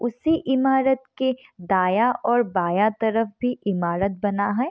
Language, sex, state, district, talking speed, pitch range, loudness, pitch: Hindi, female, Bihar, East Champaran, 140 wpm, 200-260 Hz, -22 LUFS, 225 Hz